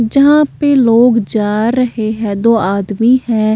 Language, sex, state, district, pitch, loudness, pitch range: Hindi, female, Bihar, Katihar, 230 Hz, -12 LUFS, 215-250 Hz